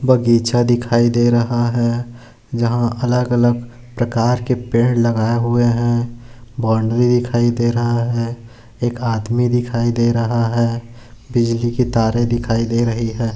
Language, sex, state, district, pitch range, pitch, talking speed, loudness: Hindi, male, Maharashtra, Aurangabad, 115-120 Hz, 120 Hz, 140 wpm, -17 LUFS